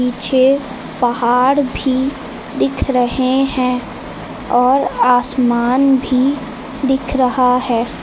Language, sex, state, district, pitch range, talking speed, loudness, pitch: Hindi, female, Uttar Pradesh, Lucknow, 245-265 Hz, 90 wpm, -15 LUFS, 255 Hz